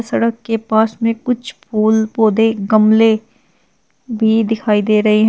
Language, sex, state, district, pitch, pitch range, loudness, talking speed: Hindi, female, Uttar Pradesh, Shamli, 220 Hz, 215-225 Hz, -15 LUFS, 145 wpm